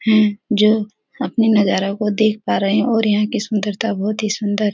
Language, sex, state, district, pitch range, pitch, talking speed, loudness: Hindi, female, Bihar, Jahanabad, 205-220 Hz, 215 Hz, 215 wpm, -18 LUFS